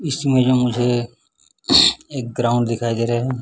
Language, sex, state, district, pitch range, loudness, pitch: Hindi, male, Chhattisgarh, Raipur, 120-130 Hz, -18 LUFS, 120 Hz